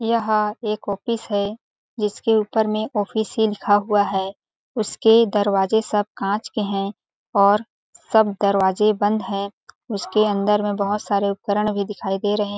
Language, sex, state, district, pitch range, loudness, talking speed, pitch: Hindi, female, Chhattisgarh, Balrampur, 200-220 Hz, -21 LUFS, 155 wpm, 210 Hz